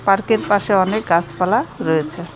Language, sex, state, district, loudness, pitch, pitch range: Bengali, female, West Bengal, Cooch Behar, -18 LUFS, 195 Hz, 170-215 Hz